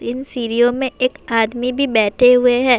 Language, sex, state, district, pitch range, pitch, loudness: Urdu, female, Bihar, Saharsa, 235-255 Hz, 245 Hz, -16 LUFS